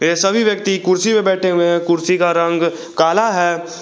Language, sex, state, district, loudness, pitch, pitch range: Hindi, male, Jharkhand, Garhwa, -15 LUFS, 175 Hz, 170-195 Hz